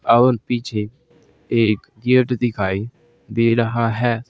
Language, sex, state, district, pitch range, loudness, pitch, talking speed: Hindi, male, Uttar Pradesh, Saharanpur, 115-125 Hz, -19 LUFS, 120 Hz, 110 wpm